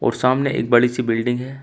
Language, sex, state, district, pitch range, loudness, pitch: Hindi, male, Uttar Pradesh, Shamli, 120-130 Hz, -19 LUFS, 125 Hz